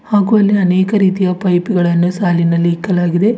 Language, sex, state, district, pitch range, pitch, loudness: Kannada, female, Karnataka, Bidar, 175-200 Hz, 185 Hz, -13 LUFS